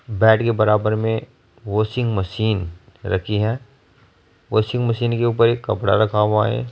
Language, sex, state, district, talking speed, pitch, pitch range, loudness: Hindi, male, Uttar Pradesh, Saharanpur, 150 wpm, 110 Hz, 105-120 Hz, -19 LUFS